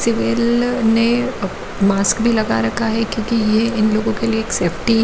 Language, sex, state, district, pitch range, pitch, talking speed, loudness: Hindi, female, Jharkhand, Jamtara, 195-230 Hz, 220 Hz, 180 wpm, -17 LUFS